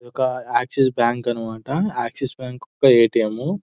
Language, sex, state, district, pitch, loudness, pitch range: Telugu, male, Telangana, Nalgonda, 125 Hz, -20 LUFS, 120-140 Hz